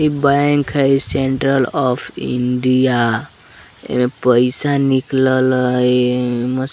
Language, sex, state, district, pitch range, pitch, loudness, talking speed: Bajjika, male, Bihar, Vaishali, 125-135 Hz, 130 Hz, -16 LUFS, 125 wpm